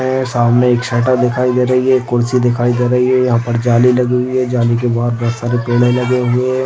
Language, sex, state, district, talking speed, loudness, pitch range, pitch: Hindi, male, Chhattisgarh, Balrampur, 245 wpm, -14 LUFS, 120-125 Hz, 125 Hz